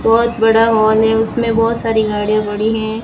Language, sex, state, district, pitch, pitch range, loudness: Hindi, female, Rajasthan, Barmer, 225 Hz, 220-225 Hz, -14 LUFS